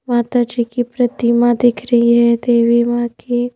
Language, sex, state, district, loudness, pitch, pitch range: Hindi, female, Madhya Pradesh, Bhopal, -15 LUFS, 240 Hz, 235-245 Hz